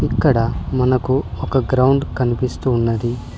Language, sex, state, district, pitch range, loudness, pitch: Telugu, male, Telangana, Mahabubabad, 120-130 Hz, -18 LUFS, 125 Hz